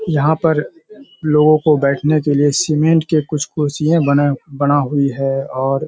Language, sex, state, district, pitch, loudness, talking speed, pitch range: Hindi, male, Bihar, Kishanganj, 150 Hz, -15 LUFS, 175 wpm, 140-155 Hz